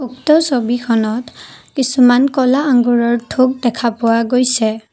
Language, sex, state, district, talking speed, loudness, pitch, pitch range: Assamese, female, Assam, Kamrup Metropolitan, 110 wpm, -14 LUFS, 245 Hz, 230-260 Hz